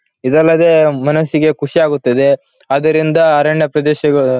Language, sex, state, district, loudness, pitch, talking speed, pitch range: Kannada, male, Karnataka, Bellary, -12 LUFS, 155 Hz, 80 wpm, 145-155 Hz